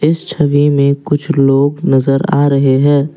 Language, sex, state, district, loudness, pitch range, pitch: Hindi, male, Assam, Kamrup Metropolitan, -12 LUFS, 140-145 Hz, 145 Hz